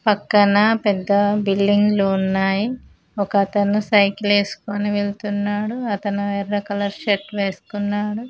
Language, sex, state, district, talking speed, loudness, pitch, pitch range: Telugu, female, Telangana, Mahabubabad, 110 wpm, -19 LUFS, 205 Hz, 200-210 Hz